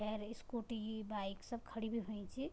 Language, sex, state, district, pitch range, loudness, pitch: Garhwali, female, Uttarakhand, Tehri Garhwal, 215-235 Hz, -44 LUFS, 220 Hz